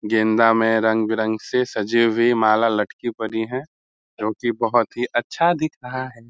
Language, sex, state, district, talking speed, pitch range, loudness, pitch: Hindi, male, Bihar, Muzaffarpur, 160 wpm, 110-120 Hz, -20 LUFS, 115 Hz